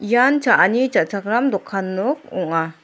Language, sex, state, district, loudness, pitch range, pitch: Garo, female, Meghalaya, South Garo Hills, -18 LUFS, 185-255 Hz, 220 Hz